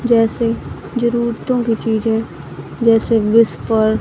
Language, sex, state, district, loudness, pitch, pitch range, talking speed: Hindi, female, Madhya Pradesh, Katni, -16 LUFS, 230 Hz, 220-235 Hz, 105 wpm